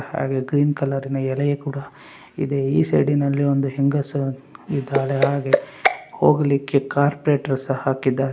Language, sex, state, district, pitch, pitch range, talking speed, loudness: Kannada, male, Karnataka, Raichur, 140 Hz, 135-140 Hz, 115 wpm, -21 LUFS